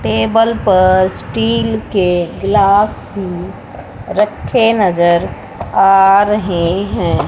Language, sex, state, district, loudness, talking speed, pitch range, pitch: Hindi, female, Haryana, Rohtak, -13 LUFS, 90 wpm, 170-205 Hz, 190 Hz